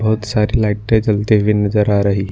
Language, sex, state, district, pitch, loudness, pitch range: Hindi, male, Jharkhand, Ranchi, 105 Hz, -15 LUFS, 105-110 Hz